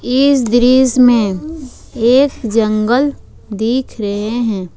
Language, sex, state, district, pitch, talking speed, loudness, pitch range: Hindi, female, Jharkhand, Ranchi, 240 Hz, 100 wpm, -13 LUFS, 220-260 Hz